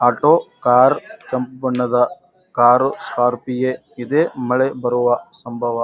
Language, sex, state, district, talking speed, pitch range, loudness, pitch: Kannada, male, Karnataka, Gulbarga, 115 wpm, 120-130 Hz, -18 LUFS, 125 Hz